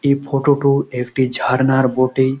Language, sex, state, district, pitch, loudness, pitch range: Bengali, male, West Bengal, Malda, 130 Hz, -17 LUFS, 130-140 Hz